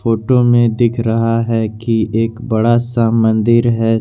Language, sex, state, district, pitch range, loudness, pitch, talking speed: Hindi, male, Jharkhand, Garhwa, 115-120 Hz, -14 LUFS, 115 Hz, 165 wpm